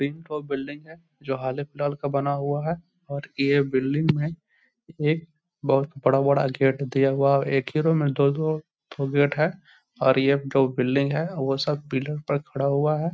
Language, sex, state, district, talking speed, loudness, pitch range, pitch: Hindi, male, Bihar, Gaya, 185 wpm, -24 LUFS, 135-155 Hz, 140 Hz